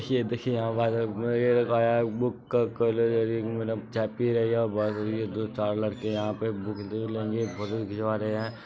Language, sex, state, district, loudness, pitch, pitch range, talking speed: Maithili, male, Bihar, Supaul, -28 LUFS, 110 Hz, 110-115 Hz, 215 wpm